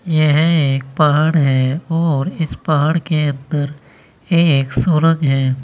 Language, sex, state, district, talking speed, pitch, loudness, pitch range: Hindi, male, Uttar Pradesh, Saharanpur, 130 wpm, 150 Hz, -16 LUFS, 140-160 Hz